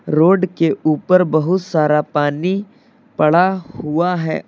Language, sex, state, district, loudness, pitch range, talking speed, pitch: Hindi, male, Uttar Pradesh, Lucknow, -16 LUFS, 155-185 Hz, 120 wpm, 175 Hz